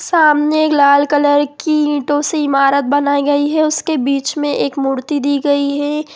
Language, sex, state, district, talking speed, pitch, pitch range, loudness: Hindi, female, Bihar, Sitamarhi, 185 wpm, 290 Hz, 280-300 Hz, -14 LUFS